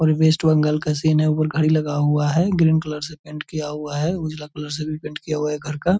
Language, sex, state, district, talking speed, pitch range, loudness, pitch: Hindi, male, Bihar, Purnia, 280 wpm, 150-155 Hz, -21 LUFS, 155 Hz